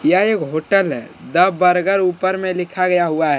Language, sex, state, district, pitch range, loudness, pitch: Hindi, male, Jharkhand, Deoghar, 180-190 Hz, -17 LUFS, 185 Hz